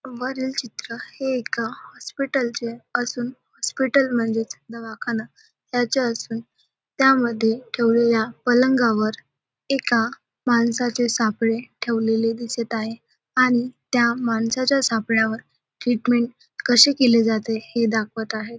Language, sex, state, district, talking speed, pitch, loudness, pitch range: Marathi, female, Maharashtra, Dhule, 100 wpm, 235 Hz, -21 LUFS, 225-250 Hz